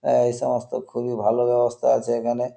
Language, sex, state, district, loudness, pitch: Bengali, male, West Bengal, North 24 Parganas, -22 LUFS, 120 Hz